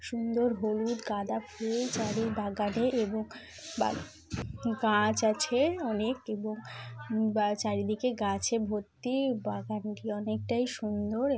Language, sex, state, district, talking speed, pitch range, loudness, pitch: Bengali, female, West Bengal, Paschim Medinipur, 100 wpm, 210-235 Hz, -31 LUFS, 220 Hz